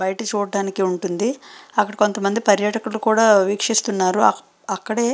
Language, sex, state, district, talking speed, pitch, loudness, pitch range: Telugu, female, Andhra Pradesh, Srikakulam, 130 wpm, 210 Hz, -19 LUFS, 200-225 Hz